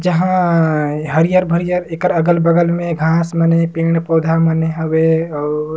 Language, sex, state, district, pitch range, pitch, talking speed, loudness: Surgujia, male, Chhattisgarh, Sarguja, 160-170 Hz, 165 Hz, 125 wpm, -15 LUFS